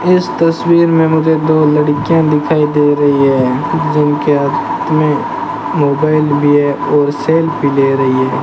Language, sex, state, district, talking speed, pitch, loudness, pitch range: Hindi, male, Rajasthan, Bikaner, 150 wpm, 150 Hz, -12 LUFS, 145-160 Hz